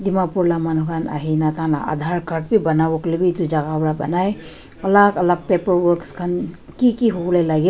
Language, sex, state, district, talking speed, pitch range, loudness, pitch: Nagamese, female, Nagaland, Dimapur, 185 wpm, 160-180 Hz, -19 LUFS, 170 Hz